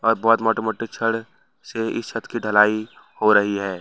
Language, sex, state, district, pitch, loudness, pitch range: Hindi, male, Jharkhand, Ranchi, 110 Hz, -21 LUFS, 105-115 Hz